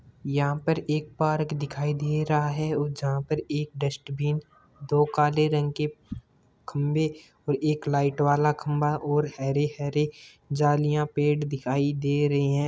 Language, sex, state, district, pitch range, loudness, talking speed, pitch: Hindi, male, Rajasthan, Churu, 145-150 Hz, -26 LUFS, 145 wpm, 150 Hz